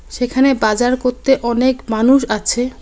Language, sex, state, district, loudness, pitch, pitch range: Bengali, female, West Bengal, Cooch Behar, -15 LUFS, 245 Hz, 235-260 Hz